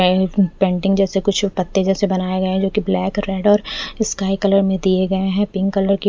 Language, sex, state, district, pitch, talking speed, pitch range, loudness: Hindi, female, Punjab, Fazilka, 195 Hz, 225 wpm, 190-200 Hz, -18 LUFS